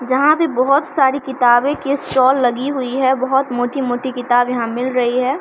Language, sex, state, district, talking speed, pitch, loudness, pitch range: Maithili, female, Bihar, Samastipur, 190 wpm, 260 Hz, -16 LUFS, 245-275 Hz